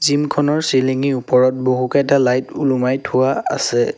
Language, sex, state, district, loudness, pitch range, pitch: Assamese, male, Assam, Sonitpur, -17 LUFS, 130-140 Hz, 130 Hz